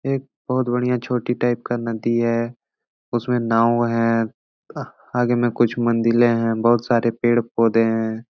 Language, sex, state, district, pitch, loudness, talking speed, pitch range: Hindi, male, Uttar Pradesh, Etah, 120 Hz, -20 LUFS, 150 wpm, 115-120 Hz